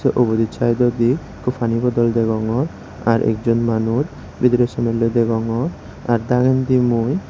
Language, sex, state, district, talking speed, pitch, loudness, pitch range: Chakma, male, Tripura, West Tripura, 125 wpm, 120 Hz, -18 LUFS, 115-125 Hz